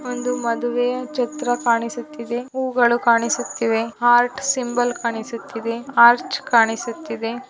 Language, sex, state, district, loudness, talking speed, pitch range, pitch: Kannada, female, Karnataka, Belgaum, -20 LUFS, 90 wpm, 230-250 Hz, 240 Hz